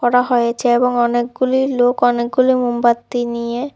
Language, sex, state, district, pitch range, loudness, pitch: Bengali, female, Tripura, West Tripura, 240-250 Hz, -16 LUFS, 245 Hz